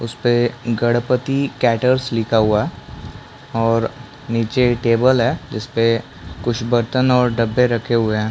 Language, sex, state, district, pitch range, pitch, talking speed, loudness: Hindi, male, Chhattisgarh, Bastar, 115-125 Hz, 120 Hz, 130 wpm, -18 LUFS